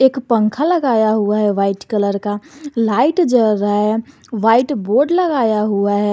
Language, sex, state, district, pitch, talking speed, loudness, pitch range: Hindi, male, Jharkhand, Garhwa, 220 Hz, 165 wpm, -16 LUFS, 205-265 Hz